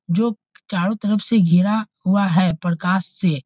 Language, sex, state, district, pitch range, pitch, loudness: Hindi, male, Bihar, Muzaffarpur, 175-210 Hz, 190 Hz, -19 LUFS